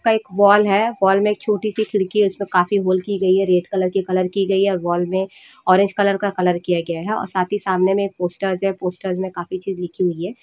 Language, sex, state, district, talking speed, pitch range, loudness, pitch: Hindi, female, Jharkhand, Jamtara, 270 wpm, 185-200 Hz, -19 LUFS, 190 Hz